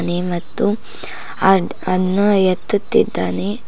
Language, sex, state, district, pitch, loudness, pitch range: Kannada, female, Karnataka, Koppal, 190 Hz, -18 LUFS, 180-205 Hz